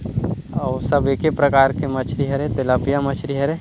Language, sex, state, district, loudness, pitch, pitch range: Chhattisgarhi, male, Chhattisgarh, Rajnandgaon, -20 LUFS, 140 Hz, 135-145 Hz